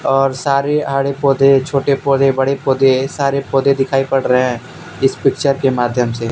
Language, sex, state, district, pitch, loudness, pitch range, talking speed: Hindi, male, Jharkhand, Deoghar, 135 Hz, -15 LUFS, 130-140 Hz, 180 wpm